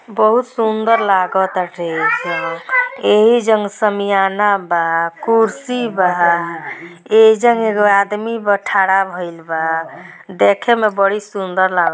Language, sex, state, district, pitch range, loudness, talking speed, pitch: Bhojpuri, female, Bihar, Gopalganj, 180-225 Hz, -15 LUFS, 110 wpm, 200 Hz